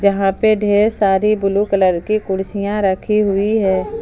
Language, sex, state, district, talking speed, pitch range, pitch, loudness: Hindi, female, Jharkhand, Ranchi, 165 wpm, 195-210 Hz, 200 Hz, -16 LUFS